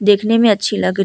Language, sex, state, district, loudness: Hindi, female, Uttar Pradesh, Budaun, -14 LUFS